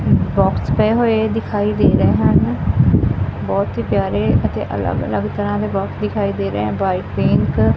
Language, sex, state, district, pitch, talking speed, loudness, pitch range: Punjabi, female, Punjab, Fazilka, 105 Hz, 170 wpm, -17 LUFS, 100-110 Hz